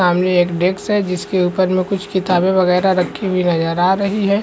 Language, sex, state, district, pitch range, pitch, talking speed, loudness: Hindi, male, Chhattisgarh, Rajnandgaon, 180-190 Hz, 185 Hz, 215 wpm, -16 LUFS